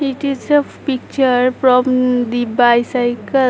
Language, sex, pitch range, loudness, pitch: English, female, 240-270 Hz, -15 LUFS, 255 Hz